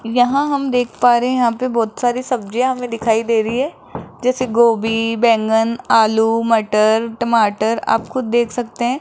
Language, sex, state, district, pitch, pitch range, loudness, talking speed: Hindi, male, Rajasthan, Jaipur, 235 Hz, 225-245 Hz, -16 LUFS, 180 wpm